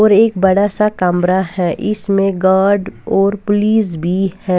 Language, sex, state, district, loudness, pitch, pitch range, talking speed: Hindi, female, Bihar, West Champaran, -14 LUFS, 195 Hz, 185-205 Hz, 155 wpm